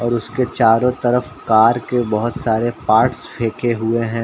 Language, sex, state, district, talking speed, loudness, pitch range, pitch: Hindi, male, Uttar Pradesh, Ghazipur, 170 wpm, -17 LUFS, 115-125 Hz, 120 Hz